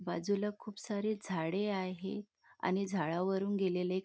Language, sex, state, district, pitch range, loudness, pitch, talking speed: Marathi, female, Maharashtra, Nagpur, 185-205 Hz, -36 LUFS, 195 Hz, 120 wpm